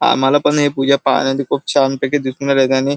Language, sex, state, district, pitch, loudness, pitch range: Marathi, male, Maharashtra, Chandrapur, 135 Hz, -15 LUFS, 135-140 Hz